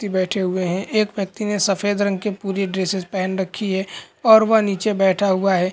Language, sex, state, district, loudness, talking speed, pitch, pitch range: Hindi, male, Chhattisgarh, Bilaspur, -19 LUFS, 220 wpm, 195 Hz, 190-205 Hz